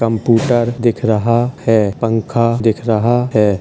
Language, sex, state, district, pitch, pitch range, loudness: Hindi, male, Uttar Pradesh, Hamirpur, 115 Hz, 110-120 Hz, -15 LUFS